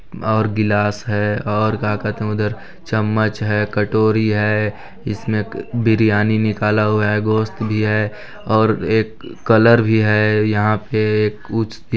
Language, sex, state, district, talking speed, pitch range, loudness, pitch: Hindi, male, Chhattisgarh, Balrampur, 145 wpm, 105-110 Hz, -17 LUFS, 105 Hz